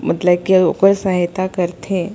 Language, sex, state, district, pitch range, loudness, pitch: Surgujia, female, Chhattisgarh, Sarguja, 175-190 Hz, -16 LUFS, 185 Hz